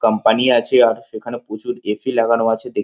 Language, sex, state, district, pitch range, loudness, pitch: Bengali, male, West Bengal, North 24 Parganas, 110-120 Hz, -17 LUFS, 115 Hz